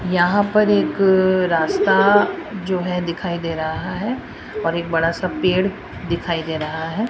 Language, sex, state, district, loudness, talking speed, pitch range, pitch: Hindi, female, Rajasthan, Jaipur, -19 LUFS, 170 wpm, 165-195 Hz, 180 Hz